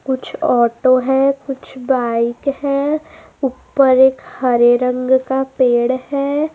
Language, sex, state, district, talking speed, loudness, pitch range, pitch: Hindi, female, Madhya Pradesh, Dhar, 120 wpm, -16 LUFS, 250-275 Hz, 265 Hz